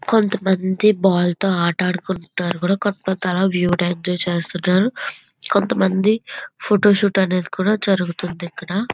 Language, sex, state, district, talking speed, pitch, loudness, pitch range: Telugu, female, Andhra Pradesh, Visakhapatnam, 115 wpm, 185 Hz, -19 LUFS, 180-200 Hz